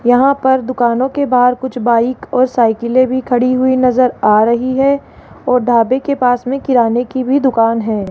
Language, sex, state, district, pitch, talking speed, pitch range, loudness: Hindi, female, Rajasthan, Jaipur, 250 Hz, 190 wpm, 240-260 Hz, -13 LUFS